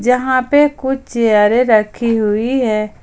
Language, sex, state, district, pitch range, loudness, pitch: Hindi, female, Jharkhand, Ranchi, 215-260 Hz, -14 LUFS, 240 Hz